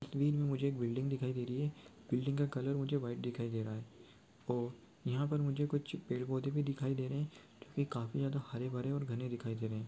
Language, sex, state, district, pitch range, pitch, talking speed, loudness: Hindi, male, Chhattisgarh, Sarguja, 120-140 Hz, 135 Hz, 255 wpm, -38 LUFS